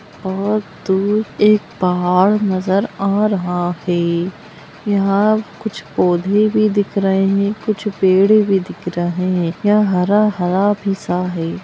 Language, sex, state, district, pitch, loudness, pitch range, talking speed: Hindi, female, Bihar, Saran, 195 Hz, -16 LUFS, 180-210 Hz, 135 wpm